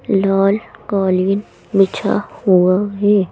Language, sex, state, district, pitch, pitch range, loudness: Hindi, female, Madhya Pradesh, Bhopal, 195 Hz, 190-205 Hz, -16 LUFS